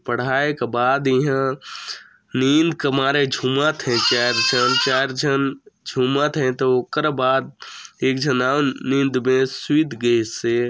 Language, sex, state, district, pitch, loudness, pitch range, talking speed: Chhattisgarhi, male, Chhattisgarh, Sarguja, 130 Hz, -19 LUFS, 125-140 Hz, 140 wpm